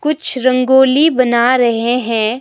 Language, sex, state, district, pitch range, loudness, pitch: Hindi, female, Himachal Pradesh, Shimla, 240-265 Hz, -12 LUFS, 255 Hz